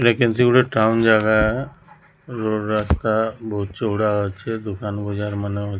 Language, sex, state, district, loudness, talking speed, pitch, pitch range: Odia, male, Odisha, Sambalpur, -20 LUFS, 145 wpm, 110 Hz, 105-120 Hz